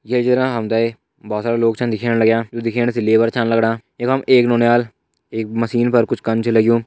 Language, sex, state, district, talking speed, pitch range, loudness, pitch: Hindi, male, Uttarakhand, Uttarkashi, 225 wpm, 115-120 Hz, -17 LUFS, 115 Hz